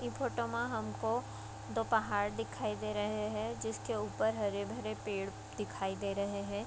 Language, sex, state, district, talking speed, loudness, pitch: Hindi, female, Bihar, Vaishali, 170 wpm, -37 LUFS, 200 Hz